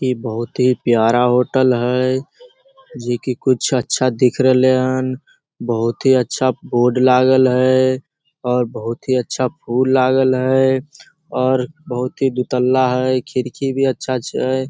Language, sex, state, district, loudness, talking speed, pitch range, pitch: Maithili, male, Bihar, Samastipur, -17 LUFS, 150 wpm, 125-130 Hz, 130 Hz